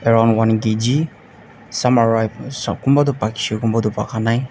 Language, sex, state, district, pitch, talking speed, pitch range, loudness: Nagamese, male, Nagaland, Dimapur, 115 Hz, 120 wpm, 110-125 Hz, -18 LUFS